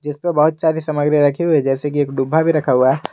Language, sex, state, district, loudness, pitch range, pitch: Hindi, male, Jharkhand, Garhwa, -16 LUFS, 140-160 Hz, 150 Hz